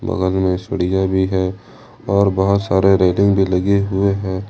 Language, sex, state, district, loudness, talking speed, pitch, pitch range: Hindi, male, Jharkhand, Ranchi, -17 LUFS, 175 wpm, 95 Hz, 95-100 Hz